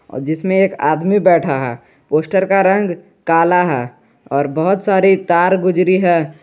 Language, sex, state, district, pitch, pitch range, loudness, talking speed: Hindi, male, Jharkhand, Garhwa, 180 Hz, 155-190 Hz, -15 LUFS, 150 wpm